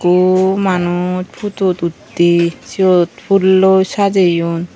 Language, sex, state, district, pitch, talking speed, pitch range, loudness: Chakma, female, Tripura, Unakoti, 185 Hz, 90 wpm, 175-190 Hz, -14 LUFS